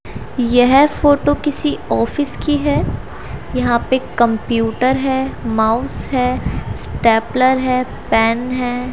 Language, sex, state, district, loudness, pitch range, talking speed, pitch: Hindi, female, Haryana, Rohtak, -16 LUFS, 235-270 Hz, 105 wpm, 255 Hz